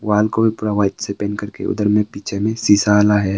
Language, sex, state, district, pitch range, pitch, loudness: Hindi, male, Arunachal Pradesh, Longding, 100-105 Hz, 105 Hz, -17 LUFS